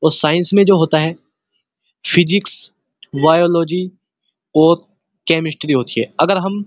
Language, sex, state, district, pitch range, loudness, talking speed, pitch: Hindi, male, Uttar Pradesh, Muzaffarnagar, 155-195 Hz, -15 LUFS, 135 wpm, 170 Hz